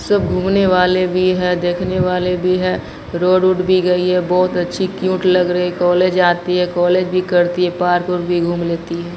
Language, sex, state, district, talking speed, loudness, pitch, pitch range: Hindi, female, Bihar, Katihar, 210 wpm, -16 LUFS, 180 Hz, 175-185 Hz